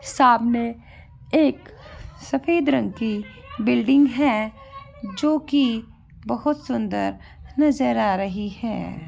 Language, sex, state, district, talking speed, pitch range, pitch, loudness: Hindi, female, Uttar Pradesh, Varanasi, 100 wpm, 210-285 Hz, 240 Hz, -22 LUFS